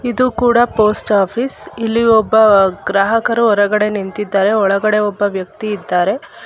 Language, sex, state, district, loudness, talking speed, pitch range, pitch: Kannada, female, Karnataka, Bangalore, -14 LUFS, 120 wpm, 205-235 Hz, 215 Hz